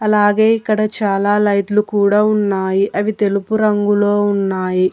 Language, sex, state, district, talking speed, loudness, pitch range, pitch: Telugu, female, Telangana, Hyderabad, 120 wpm, -15 LUFS, 200-215 Hz, 205 Hz